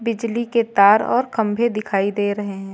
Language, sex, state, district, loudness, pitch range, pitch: Hindi, female, Uttar Pradesh, Lucknow, -19 LUFS, 205-230 Hz, 215 Hz